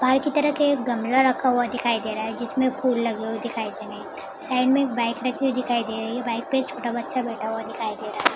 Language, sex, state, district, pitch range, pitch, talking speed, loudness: Hindi, female, Bihar, Madhepura, 230-260 Hz, 245 Hz, 280 wpm, -24 LUFS